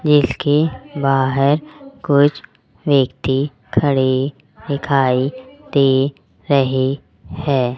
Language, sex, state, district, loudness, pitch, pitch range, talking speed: Hindi, female, Rajasthan, Jaipur, -17 LUFS, 140 Hz, 130-145 Hz, 70 wpm